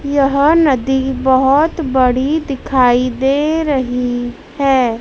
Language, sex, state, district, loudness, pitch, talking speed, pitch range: Hindi, female, Madhya Pradesh, Dhar, -14 LUFS, 265 Hz, 95 wpm, 255-285 Hz